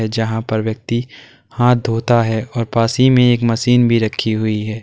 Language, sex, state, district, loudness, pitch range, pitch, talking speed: Hindi, male, Uttar Pradesh, Lalitpur, -16 LUFS, 110-120 Hz, 115 Hz, 200 wpm